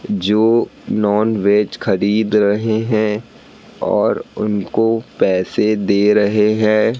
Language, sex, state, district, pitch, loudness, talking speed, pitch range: Hindi, male, Madhya Pradesh, Katni, 105 Hz, -16 LUFS, 95 wpm, 105-110 Hz